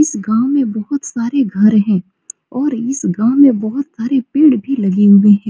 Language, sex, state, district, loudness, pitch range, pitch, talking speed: Hindi, female, Bihar, Supaul, -14 LUFS, 210-275 Hz, 235 Hz, 195 wpm